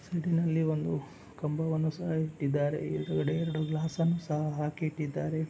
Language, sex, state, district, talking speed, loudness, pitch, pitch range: Kannada, male, Karnataka, Dakshina Kannada, 130 wpm, -32 LUFS, 155 Hz, 150-160 Hz